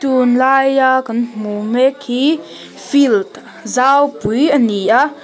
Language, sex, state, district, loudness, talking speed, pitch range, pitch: Mizo, female, Mizoram, Aizawl, -14 LUFS, 115 wpm, 230-280 Hz, 260 Hz